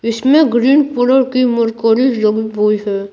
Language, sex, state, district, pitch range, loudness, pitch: Hindi, female, Bihar, Patna, 220-260 Hz, -13 LUFS, 235 Hz